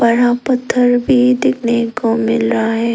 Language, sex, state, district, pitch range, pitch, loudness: Hindi, female, Arunachal Pradesh, Lower Dibang Valley, 230-250 Hz, 235 Hz, -14 LUFS